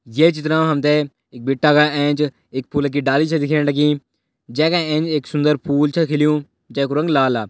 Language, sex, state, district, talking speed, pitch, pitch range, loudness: Garhwali, male, Uttarakhand, Tehri Garhwal, 200 wpm, 150 Hz, 140-155 Hz, -18 LUFS